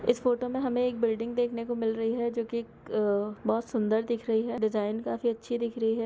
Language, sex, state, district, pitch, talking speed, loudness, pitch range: Hindi, female, Bihar, Sitamarhi, 230 Hz, 275 wpm, -29 LUFS, 225-240 Hz